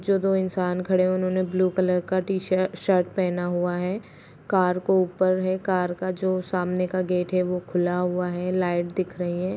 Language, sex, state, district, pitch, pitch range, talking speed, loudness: Hindi, female, Bihar, East Champaran, 185 Hz, 180-185 Hz, 205 wpm, -24 LUFS